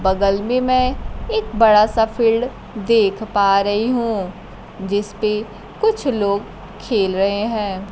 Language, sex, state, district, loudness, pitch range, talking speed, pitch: Hindi, female, Bihar, Kaimur, -18 LUFS, 200-230 Hz, 135 wpm, 215 Hz